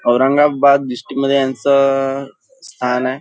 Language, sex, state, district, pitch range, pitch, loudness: Marathi, male, Maharashtra, Nagpur, 130-140 Hz, 135 Hz, -15 LUFS